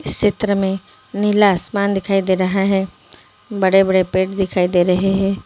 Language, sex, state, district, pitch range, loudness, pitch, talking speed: Hindi, female, Bihar, Gopalganj, 185-200 Hz, -17 LUFS, 195 Hz, 165 wpm